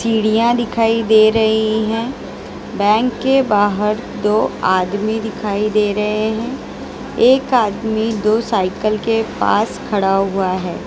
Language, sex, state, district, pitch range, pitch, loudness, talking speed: Hindi, female, Gujarat, Valsad, 205-225 Hz, 220 Hz, -16 LUFS, 125 wpm